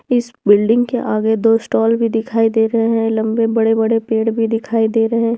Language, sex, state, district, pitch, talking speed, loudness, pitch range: Hindi, female, Jharkhand, Ranchi, 225 Hz, 210 wpm, -15 LUFS, 225-230 Hz